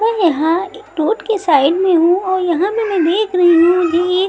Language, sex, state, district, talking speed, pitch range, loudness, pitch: Hindi, female, Maharashtra, Mumbai Suburban, 225 wpm, 340-395 Hz, -14 LUFS, 360 Hz